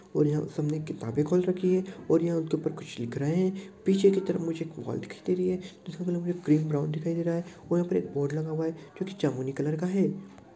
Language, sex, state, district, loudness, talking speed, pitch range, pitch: Hindi, male, Uttar Pradesh, Deoria, -29 LUFS, 260 wpm, 155-185 Hz, 165 Hz